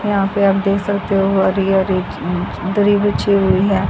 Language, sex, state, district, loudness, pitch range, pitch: Hindi, female, Haryana, Jhajjar, -16 LUFS, 190-200 Hz, 195 Hz